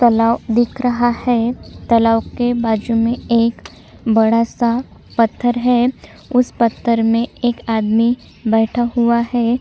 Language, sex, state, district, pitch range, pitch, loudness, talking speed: Hindi, female, Chhattisgarh, Sukma, 230-240 Hz, 235 Hz, -16 LUFS, 135 wpm